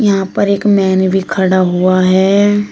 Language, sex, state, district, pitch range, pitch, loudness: Hindi, female, Uttar Pradesh, Shamli, 185-200 Hz, 190 Hz, -12 LUFS